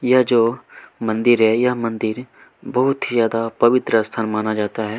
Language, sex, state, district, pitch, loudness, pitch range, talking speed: Hindi, male, Chhattisgarh, Kabirdham, 115 Hz, -18 LUFS, 110-125 Hz, 170 wpm